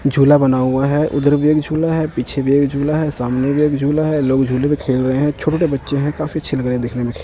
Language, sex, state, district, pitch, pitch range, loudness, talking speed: Hindi, male, Punjab, Kapurthala, 140 Hz, 130-150 Hz, -16 LUFS, 300 wpm